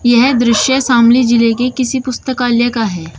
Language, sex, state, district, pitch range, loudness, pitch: Hindi, female, Uttar Pradesh, Shamli, 235-255 Hz, -12 LUFS, 240 Hz